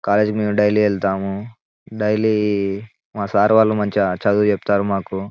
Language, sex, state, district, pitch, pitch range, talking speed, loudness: Telugu, male, Telangana, Nalgonda, 105 Hz, 100-105 Hz, 135 wpm, -18 LUFS